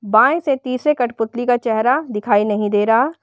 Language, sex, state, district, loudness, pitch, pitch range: Hindi, female, Uttar Pradesh, Shamli, -17 LUFS, 240 Hz, 215-260 Hz